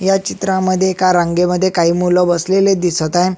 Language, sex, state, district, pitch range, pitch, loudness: Marathi, male, Maharashtra, Sindhudurg, 175-190 Hz, 180 Hz, -14 LUFS